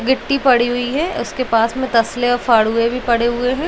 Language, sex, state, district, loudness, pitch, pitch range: Hindi, female, Uttar Pradesh, Jalaun, -16 LUFS, 245 Hz, 235-260 Hz